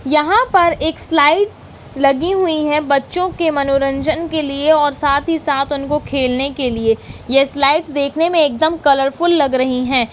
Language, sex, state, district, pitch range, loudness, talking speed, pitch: Hindi, female, Uttarakhand, Uttarkashi, 275-320 Hz, -15 LUFS, 170 wpm, 290 Hz